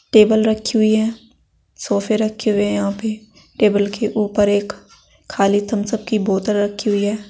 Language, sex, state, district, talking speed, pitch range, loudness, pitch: Hindi, female, Uttar Pradesh, Saharanpur, 175 wpm, 205-220 Hz, -18 LUFS, 210 Hz